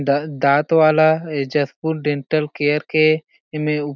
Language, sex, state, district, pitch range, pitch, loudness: Chhattisgarhi, male, Chhattisgarh, Jashpur, 145-155 Hz, 150 Hz, -18 LUFS